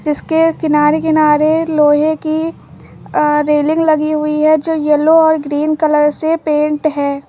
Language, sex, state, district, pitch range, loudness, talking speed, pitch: Hindi, female, Uttar Pradesh, Lucknow, 300-315 Hz, -13 LUFS, 140 wpm, 310 Hz